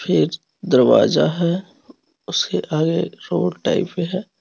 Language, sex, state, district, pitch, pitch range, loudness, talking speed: Hindi, male, Jharkhand, Garhwa, 185 Hz, 170-270 Hz, -19 LUFS, 120 wpm